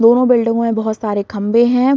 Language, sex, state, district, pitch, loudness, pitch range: Hindi, female, Uttar Pradesh, Gorakhpur, 230 Hz, -15 LUFS, 215-245 Hz